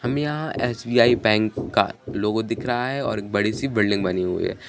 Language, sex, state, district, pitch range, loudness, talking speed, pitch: Hindi, male, Bihar, Jahanabad, 105-125 Hz, -22 LUFS, 220 wpm, 115 Hz